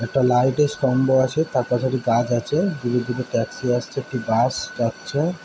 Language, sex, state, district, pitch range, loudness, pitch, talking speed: Bengali, male, West Bengal, Kolkata, 120-135 Hz, -21 LUFS, 125 Hz, 185 wpm